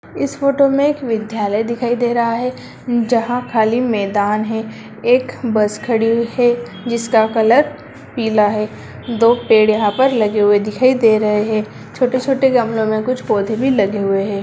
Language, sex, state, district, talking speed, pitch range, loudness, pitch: Hindi, female, Bihar, Bhagalpur, 170 wpm, 215-245 Hz, -16 LUFS, 230 Hz